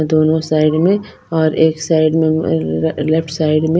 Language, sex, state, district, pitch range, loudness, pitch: Hindi, female, Bihar, Patna, 155-160 Hz, -15 LUFS, 160 Hz